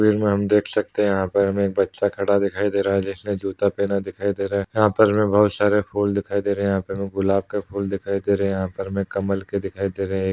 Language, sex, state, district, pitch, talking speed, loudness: Hindi, male, Uttar Pradesh, Hamirpur, 100 Hz, 315 wpm, -22 LUFS